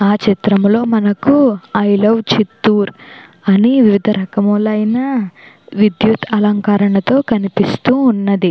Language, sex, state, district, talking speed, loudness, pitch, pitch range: Telugu, female, Andhra Pradesh, Chittoor, 90 wpm, -13 LUFS, 210 Hz, 200-225 Hz